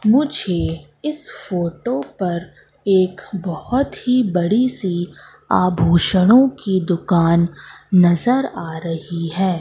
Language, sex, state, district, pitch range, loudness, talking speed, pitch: Hindi, female, Madhya Pradesh, Katni, 170-225 Hz, -18 LUFS, 100 wpm, 185 Hz